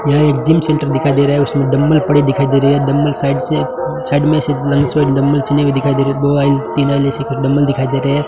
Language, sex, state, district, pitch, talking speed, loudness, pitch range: Hindi, male, Rajasthan, Bikaner, 140 Hz, 240 wpm, -14 LUFS, 140-145 Hz